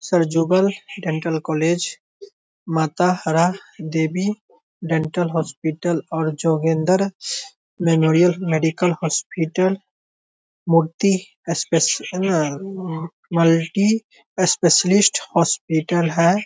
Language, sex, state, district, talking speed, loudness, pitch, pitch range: Hindi, male, Bihar, Darbhanga, 75 wpm, -20 LUFS, 170 Hz, 160-185 Hz